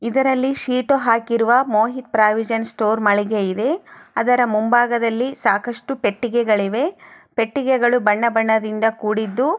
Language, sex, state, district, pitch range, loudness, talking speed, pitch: Kannada, female, Karnataka, Chamarajanagar, 220-255 Hz, -18 LUFS, 105 wpm, 235 Hz